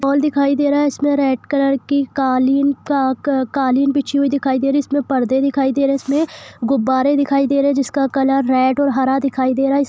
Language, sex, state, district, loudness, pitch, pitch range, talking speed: Hindi, female, Jharkhand, Jamtara, -17 LUFS, 275 Hz, 265-280 Hz, 235 wpm